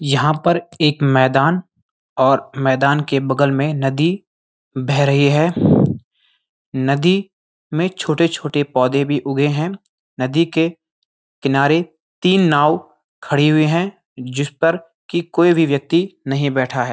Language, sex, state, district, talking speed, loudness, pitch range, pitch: Hindi, male, Uttarakhand, Uttarkashi, 135 wpm, -17 LUFS, 140-170 Hz, 150 Hz